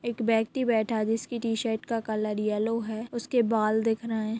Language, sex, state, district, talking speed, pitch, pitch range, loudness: Hindi, female, Chhattisgarh, Raigarh, 220 wpm, 225 Hz, 220-230 Hz, -28 LUFS